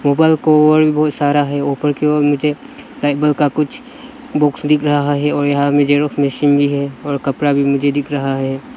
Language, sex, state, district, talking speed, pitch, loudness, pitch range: Hindi, male, Arunachal Pradesh, Lower Dibang Valley, 210 wpm, 145 Hz, -15 LUFS, 140-150 Hz